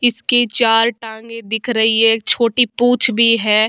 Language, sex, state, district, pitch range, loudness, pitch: Hindi, female, Bihar, Vaishali, 225-240 Hz, -14 LUFS, 230 Hz